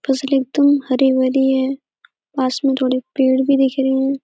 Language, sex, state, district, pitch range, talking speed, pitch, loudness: Hindi, female, Uttar Pradesh, Etah, 260-275 Hz, 170 wpm, 265 Hz, -17 LUFS